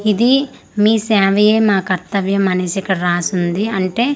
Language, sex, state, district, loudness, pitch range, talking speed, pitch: Telugu, female, Andhra Pradesh, Manyam, -15 LUFS, 185-215 Hz, 175 wpm, 200 Hz